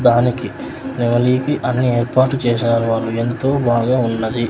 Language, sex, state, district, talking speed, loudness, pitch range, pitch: Telugu, male, Andhra Pradesh, Sri Satya Sai, 135 wpm, -17 LUFS, 115-130 Hz, 120 Hz